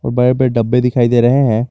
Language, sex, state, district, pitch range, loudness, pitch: Hindi, male, Jharkhand, Garhwa, 120-125 Hz, -13 LUFS, 125 Hz